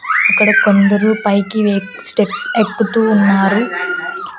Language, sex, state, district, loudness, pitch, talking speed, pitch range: Telugu, female, Andhra Pradesh, Annamaya, -13 LUFS, 210 Hz, 95 wpm, 200-220 Hz